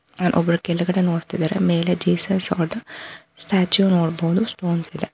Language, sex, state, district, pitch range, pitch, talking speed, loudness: Kannada, female, Karnataka, Bangalore, 170-190 Hz, 180 Hz, 105 wpm, -20 LUFS